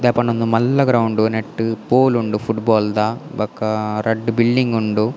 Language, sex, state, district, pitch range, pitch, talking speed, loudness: Tulu, male, Karnataka, Dakshina Kannada, 110-120 Hz, 115 Hz, 175 wpm, -18 LUFS